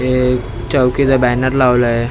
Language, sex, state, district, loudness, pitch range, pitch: Marathi, male, Maharashtra, Mumbai Suburban, -14 LUFS, 120-130 Hz, 125 Hz